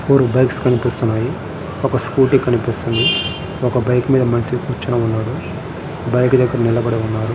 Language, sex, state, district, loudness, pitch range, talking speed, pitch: Telugu, male, Andhra Pradesh, Srikakulam, -17 LUFS, 115-130 Hz, 140 wpm, 125 Hz